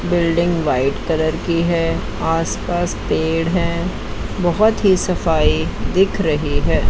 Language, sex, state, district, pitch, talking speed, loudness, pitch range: Hindi, female, Chandigarh, Chandigarh, 170 Hz, 130 wpm, -18 LUFS, 160-175 Hz